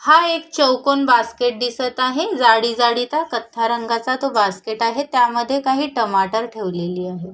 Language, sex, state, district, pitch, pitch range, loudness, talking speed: Marathi, female, Maharashtra, Sindhudurg, 240 Hz, 225-275 Hz, -18 LUFS, 155 wpm